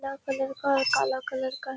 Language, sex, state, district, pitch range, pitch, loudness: Hindi, female, Bihar, Kishanganj, 260-275 Hz, 270 Hz, -27 LUFS